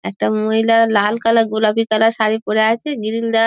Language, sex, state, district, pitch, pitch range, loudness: Bengali, female, West Bengal, Dakshin Dinajpur, 220 Hz, 215-225 Hz, -15 LUFS